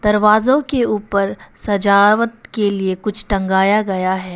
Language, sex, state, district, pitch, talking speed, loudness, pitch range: Hindi, female, Arunachal Pradesh, Papum Pare, 205 Hz, 140 wpm, -16 LUFS, 195-215 Hz